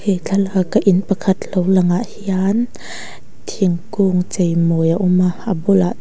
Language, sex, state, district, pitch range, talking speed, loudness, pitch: Mizo, female, Mizoram, Aizawl, 180-195 Hz, 180 wpm, -17 LUFS, 190 Hz